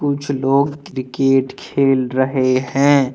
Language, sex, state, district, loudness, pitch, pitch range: Hindi, male, Jharkhand, Deoghar, -17 LUFS, 135 Hz, 130-140 Hz